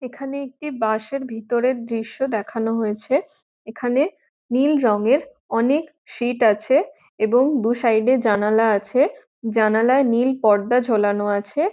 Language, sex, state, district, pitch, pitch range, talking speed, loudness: Bengali, female, West Bengal, Jhargram, 240 Hz, 220-275 Hz, 130 wpm, -20 LUFS